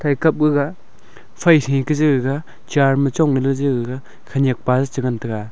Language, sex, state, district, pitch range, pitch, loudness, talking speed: Wancho, male, Arunachal Pradesh, Longding, 130-150 Hz, 135 Hz, -18 LUFS, 205 wpm